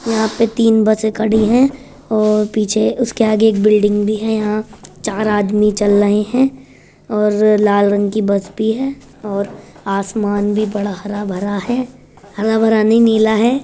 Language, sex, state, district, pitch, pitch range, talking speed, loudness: Hindi, male, Uttar Pradesh, Jyotiba Phule Nagar, 215 Hz, 205-220 Hz, 165 wpm, -15 LUFS